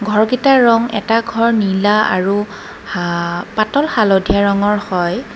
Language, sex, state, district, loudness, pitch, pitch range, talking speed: Assamese, female, Assam, Kamrup Metropolitan, -15 LUFS, 210 Hz, 195-230 Hz, 125 wpm